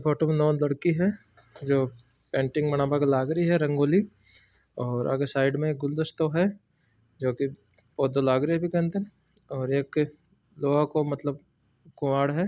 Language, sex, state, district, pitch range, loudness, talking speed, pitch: Marwari, male, Rajasthan, Churu, 135-160 Hz, -26 LUFS, 150 wpm, 145 Hz